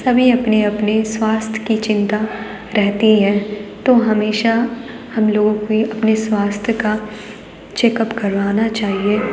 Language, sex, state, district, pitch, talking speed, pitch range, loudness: Hindi, female, Uttar Pradesh, Jalaun, 215 Hz, 115 wpm, 210-225 Hz, -17 LUFS